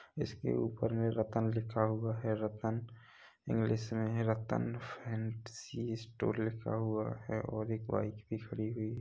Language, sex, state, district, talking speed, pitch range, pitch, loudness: Hindi, male, Chhattisgarh, Rajnandgaon, 145 wpm, 110-115 Hz, 110 Hz, -37 LUFS